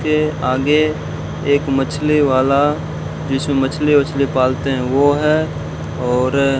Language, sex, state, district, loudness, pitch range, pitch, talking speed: Hindi, male, Rajasthan, Bikaner, -17 LUFS, 135-150 Hz, 140 Hz, 125 wpm